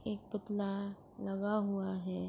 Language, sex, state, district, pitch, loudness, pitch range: Urdu, female, Andhra Pradesh, Anantapur, 200 Hz, -38 LUFS, 195-210 Hz